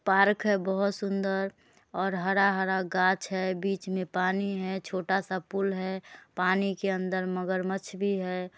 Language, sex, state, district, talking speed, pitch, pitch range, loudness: Hindi, female, Bihar, Muzaffarpur, 155 wpm, 190 Hz, 185-195 Hz, -29 LUFS